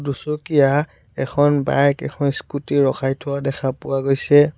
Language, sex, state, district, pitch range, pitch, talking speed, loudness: Assamese, male, Assam, Sonitpur, 135-145 Hz, 140 Hz, 130 wpm, -19 LUFS